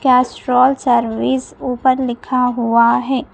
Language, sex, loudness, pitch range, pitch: Hindi, female, -16 LUFS, 240-260 Hz, 250 Hz